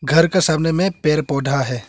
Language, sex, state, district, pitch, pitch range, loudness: Hindi, male, Arunachal Pradesh, Longding, 155 Hz, 140-165 Hz, -17 LUFS